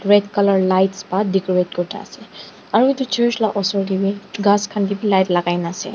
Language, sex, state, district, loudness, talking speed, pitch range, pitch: Nagamese, female, Nagaland, Dimapur, -18 LUFS, 200 wpm, 190-205 Hz, 200 Hz